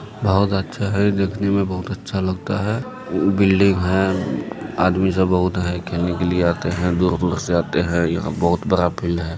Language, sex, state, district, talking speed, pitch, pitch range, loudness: Hindi, male, Bihar, Araria, 190 wpm, 95 Hz, 90-100 Hz, -20 LUFS